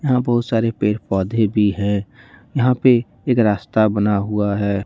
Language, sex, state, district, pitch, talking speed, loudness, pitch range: Hindi, male, Jharkhand, Ranchi, 110 Hz, 170 wpm, -18 LUFS, 100-120 Hz